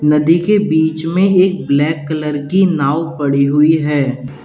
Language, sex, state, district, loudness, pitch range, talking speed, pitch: Hindi, male, Uttar Pradesh, Lalitpur, -14 LUFS, 145-165 Hz, 160 wpm, 155 Hz